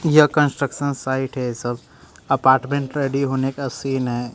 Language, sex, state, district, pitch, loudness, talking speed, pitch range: Hindi, male, Bihar, Katihar, 135 Hz, -20 LUFS, 150 wpm, 130-140 Hz